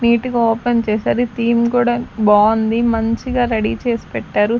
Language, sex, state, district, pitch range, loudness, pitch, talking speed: Telugu, female, Andhra Pradesh, Sri Satya Sai, 225-240 Hz, -16 LUFS, 235 Hz, 145 wpm